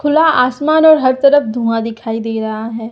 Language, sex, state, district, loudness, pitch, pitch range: Hindi, female, Madhya Pradesh, Umaria, -13 LUFS, 245 Hz, 225-290 Hz